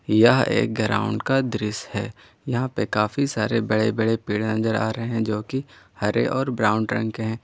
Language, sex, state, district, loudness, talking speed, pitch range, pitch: Hindi, male, Jharkhand, Ranchi, -23 LUFS, 200 wpm, 105-120 Hz, 110 Hz